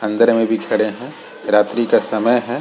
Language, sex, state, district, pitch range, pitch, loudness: Hindi, male, Chhattisgarh, Rajnandgaon, 110-120 Hz, 115 Hz, -16 LUFS